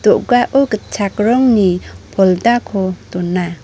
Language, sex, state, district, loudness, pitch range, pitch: Garo, female, Meghalaya, North Garo Hills, -14 LUFS, 180-240 Hz, 200 Hz